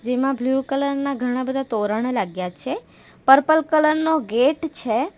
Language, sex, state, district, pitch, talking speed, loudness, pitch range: Gujarati, female, Gujarat, Valsad, 270 Hz, 150 wpm, -21 LUFS, 245-285 Hz